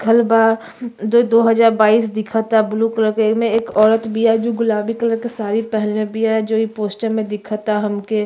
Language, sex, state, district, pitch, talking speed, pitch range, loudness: Bhojpuri, female, Uttar Pradesh, Gorakhpur, 220 Hz, 195 wpm, 215-225 Hz, -17 LUFS